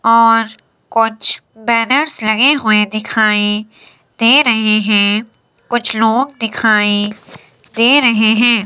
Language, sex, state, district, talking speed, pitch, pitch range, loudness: Hindi, female, Himachal Pradesh, Shimla, 105 wpm, 225 Hz, 215-235 Hz, -13 LUFS